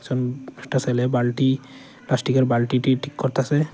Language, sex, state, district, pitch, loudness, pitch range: Bengali, male, Tripura, Unakoti, 130 Hz, -22 LUFS, 125-135 Hz